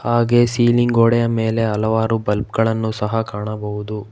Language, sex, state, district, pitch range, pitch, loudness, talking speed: Kannada, male, Karnataka, Bangalore, 105-115 Hz, 110 Hz, -18 LUFS, 130 wpm